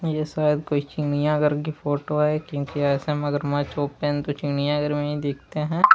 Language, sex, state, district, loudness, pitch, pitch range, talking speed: Hindi, male, Jharkhand, Palamu, -24 LUFS, 145 Hz, 145-150 Hz, 170 wpm